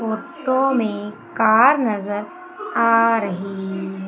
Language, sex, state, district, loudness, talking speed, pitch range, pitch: Hindi, female, Madhya Pradesh, Umaria, -19 LUFS, 105 wpm, 205-255 Hz, 220 Hz